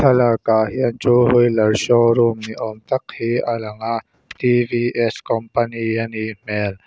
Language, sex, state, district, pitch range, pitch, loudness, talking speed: Mizo, male, Mizoram, Aizawl, 110-120 Hz, 115 Hz, -18 LUFS, 150 wpm